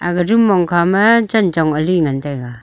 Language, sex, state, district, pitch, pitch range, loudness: Wancho, female, Arunachal Pradesh, Longding, 175 Hz, 155-205 Hz, -14 LUFS